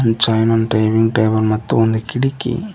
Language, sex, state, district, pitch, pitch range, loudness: Kannada, male, Karnataka, Koppal, 110 Hz, 110-115 Hz, -16 LUFS